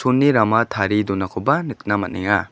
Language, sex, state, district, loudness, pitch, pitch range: Garo, male, Meghalaya, West Garo Hills, -19 LUFS, 105 Hz, 100-130 Hz